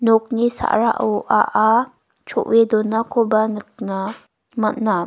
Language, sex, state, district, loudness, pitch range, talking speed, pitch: Garo, female, Meghalaya, West Garo Hills, -19 LUFS, 215-230 Hz, 85 wpm, 225 Hz